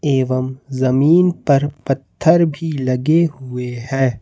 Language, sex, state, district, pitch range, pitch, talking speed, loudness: Hindi, male, Jharkhand, Ranchi, 130-155 Hz, 135 Hz, 115 wpm, -17 LUFS